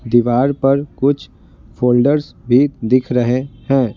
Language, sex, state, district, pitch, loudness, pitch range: Hindi, male, Bihar, Patna, 125 Hz, -16 LUFS, 120-135 Hz